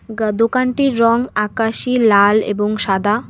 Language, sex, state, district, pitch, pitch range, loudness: Bengali, female, West Bengal, Alipurduar, 225 Hz, 210-240 Hz, -15 LUFS